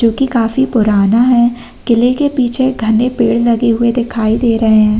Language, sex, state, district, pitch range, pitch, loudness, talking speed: Hindi, female, Uttar Pradesh, Hamirpur, 225-245 Hz, 235 Hz, -12 LUFS, 180 wpm